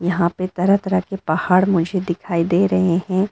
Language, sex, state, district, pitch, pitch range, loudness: Hindi, female, Arunachal Pradesh, Lower Dibang Valley, 185 Hz, 175-190 Hz, -19 LUFS